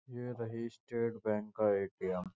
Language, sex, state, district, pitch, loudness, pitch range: Hindi, male, Uttar Pradesh, Jyotiba Phule Nagar, 115 Hz, -37 LUFS, 100-115 Hz